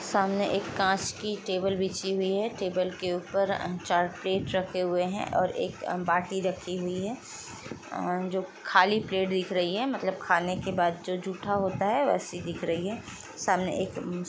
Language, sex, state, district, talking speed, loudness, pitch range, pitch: Hindi, female, Uttar Pradesh, Jalaun, 190 wpm, -29 LUFS, 180-195 Hz, 185 Hz